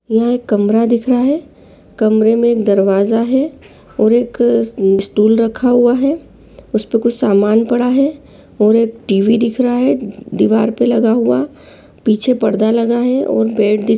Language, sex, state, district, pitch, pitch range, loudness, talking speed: Hindi, female, Chhattisgarh, Raigarh, 230 Hz, 215-245 Hz, -14 LUFS, 175 wpm